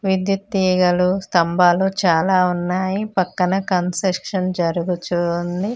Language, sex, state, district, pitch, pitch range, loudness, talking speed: Telugu, female, Telangana, Mahabubabad, 185 Hz, 175-190 Hz, -19 LUFS, 95 wpm